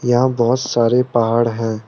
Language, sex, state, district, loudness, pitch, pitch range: Hindi, male, Arunachal Pradesh, Lower Dibang Valley, -16 LUFS, 120 Hz, 115-125 Hz